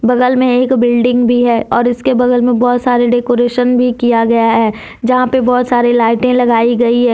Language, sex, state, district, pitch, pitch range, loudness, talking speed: Hindi, female, Jharkhand, Deoghar, 245 Hz, 240-250 Hz, -11 LUFS, 210 wpm